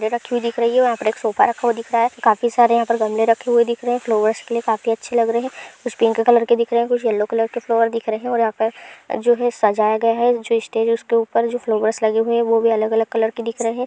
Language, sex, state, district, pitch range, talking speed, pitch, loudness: Hindi, female, Bihar, Supaul, 225-240 Hz, 310 wpm, 230 Hz, -18 LUFS